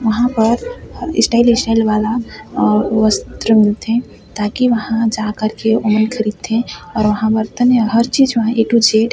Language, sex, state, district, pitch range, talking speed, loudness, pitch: Chhattisgarhi, female, Chhattisgarh, Sarguja, 215-235 Hz, 160 wpm, -15 LUFS, 225 Hz